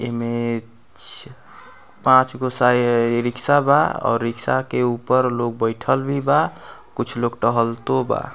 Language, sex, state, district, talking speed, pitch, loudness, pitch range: Bhojpuri, male, Bihar, Muzaffarpur, 145 wpm, 120 Hz, -19 LUFS, 115-130 Hz